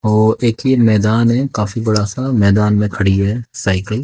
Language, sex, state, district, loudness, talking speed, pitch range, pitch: Hindi, male, Haryana, Jhajjar, -15 LUFS, 195 wpm, 105-120 Hz, 110 Hz